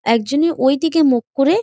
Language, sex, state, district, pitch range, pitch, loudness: Bengali, female, West Bengal, Jhargram, 250-325 Hz, 280 Hz, -16 LUFS